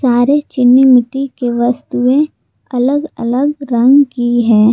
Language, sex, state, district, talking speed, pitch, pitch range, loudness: Hindi, female, Jharkhand, Garhwa, 125 wpm, 255 Hz, 240-275 Hz, -12 LUFS